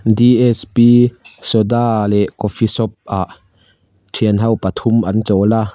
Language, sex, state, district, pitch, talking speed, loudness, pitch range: Mizo, male, Mizoram, Aizawl, 110 Hz, 135 wpm, -14 LUFS, 105-115 Hz